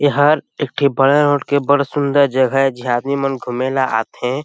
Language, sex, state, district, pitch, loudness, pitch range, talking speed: Chhattisgarhi, male, Chhattisgarh, Sarguja, 140 Hz, -16 LUFS, 130-145 Hz, 230 wpm